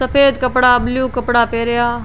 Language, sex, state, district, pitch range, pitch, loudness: Rajasthani, female, Rajasthan, Churu, 240-260 Hz, 245 Hz, -14 LUFS